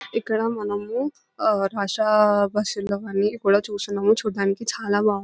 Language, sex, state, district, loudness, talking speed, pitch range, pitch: Telugu, female, Telangana, Nalgonda, -23 LUFS, 150 wpm, 200-215 Hz, 205 Hz